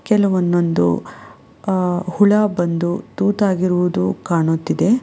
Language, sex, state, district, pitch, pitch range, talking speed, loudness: Kannada, female, Karnataka, Bangalore, 180 Hz, 170-200 Hz, 85 wpm, -18 LUFS